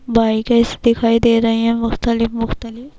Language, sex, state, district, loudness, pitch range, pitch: Urdu, female, Bihar, Kishanganj, -16 LUFS, 230-235 Hz, 230 Hz